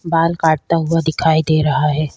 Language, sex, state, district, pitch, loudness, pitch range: Hindi, female, Chhattisgarh, Sukma, 160 Hz, -16 LUFS, 155-165 Hz